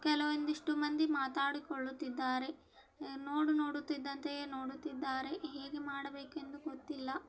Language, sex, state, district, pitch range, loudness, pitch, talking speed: Kannada, female, Karnataka, Belgaum, 275-300 Hz, -38 LUFS, 285 Hz, 75 wpm